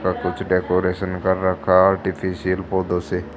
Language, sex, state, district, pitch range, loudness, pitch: Hindi, female, Haryana, Charkhi Dadri, 90-95 Hz, -20 LUFS, 95 Hz